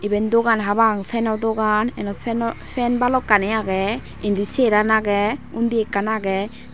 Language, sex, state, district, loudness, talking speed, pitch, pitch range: Chakma, female, Tripura, Dhalai, -20 LUFS, 140 wpm, 220 Hz, 205-230 Hz